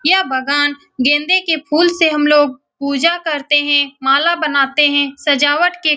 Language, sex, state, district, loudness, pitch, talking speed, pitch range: Hindi, female, Bihar, Saran, -14 LUFS, 295 Hz, 170 wpm, 285-330 Hz